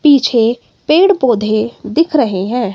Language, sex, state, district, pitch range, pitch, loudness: Hindi, female, Himachal Pradesh, Shimla, 225-300 Hz, 245 Hz, -13 LUFS